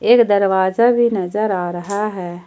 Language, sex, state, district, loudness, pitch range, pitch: Hindi, female, Jharkhand, Ranchi, -17 LUFS, 185-225 Hz, 200 Hz